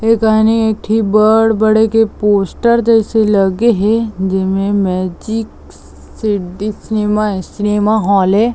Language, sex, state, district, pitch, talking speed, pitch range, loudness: Chhattisgarhi, female, Chhattisgarh, Bilaspur, 215 Hz, 140 wpm, 200-220 Hz, -13 LUFS